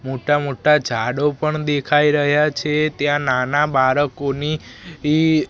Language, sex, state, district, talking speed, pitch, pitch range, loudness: Gujarati, male, Gujarat, Gandhinagar, 110 wpm, 145 Hz, 140-150 Hz, -18 LUFS